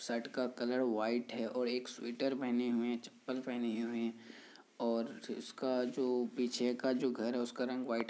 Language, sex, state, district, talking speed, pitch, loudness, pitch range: Hindi, male, Bihar, Kishanganj, 215 wpm, 120 Hz, -37 LUFS, 115-125 Hz